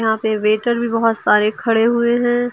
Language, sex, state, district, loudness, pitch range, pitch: Hindi, female, Uttar Pradesh, Lucknow, -16 LUFS, 220-240 Hz, 230 Hz